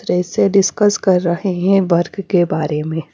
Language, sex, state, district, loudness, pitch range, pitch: Hindi, female, Punjab, Fazilka, -16 LUFS, 170-195 Hz, 180 Hz